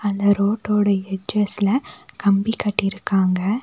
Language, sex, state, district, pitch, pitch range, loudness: Tamil, female, Tamil Nadu, Nilgiris, 205 Hz, 195-210 Hz, -20 LUFS